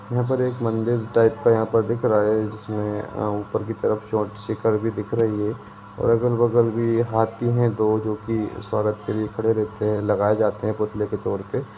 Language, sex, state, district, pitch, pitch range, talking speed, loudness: Hindi, male, Jharkhand, Jamtara, 110 Hz, 105-115 Hz, 220 wpm, -22 LUFS